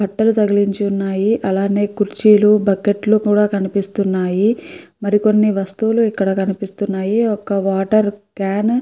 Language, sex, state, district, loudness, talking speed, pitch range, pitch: Telugu, female, Andhra Pradesh, Guntur, -16 LUFS, 110 wpm, 195-215 Hz, 205 Hz